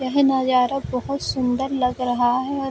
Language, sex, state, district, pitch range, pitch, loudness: Hindi, female, Bihar, Sitamarhi, 250-275 Hz, 260 Hz, -21 LUFS